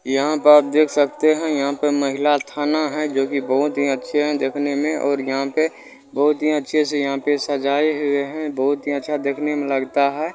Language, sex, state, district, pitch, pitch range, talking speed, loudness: Bhojpuri, male, Bihar, Saran, 145 Hz, 140-150 Hz, 220 wpm, -19 LUFS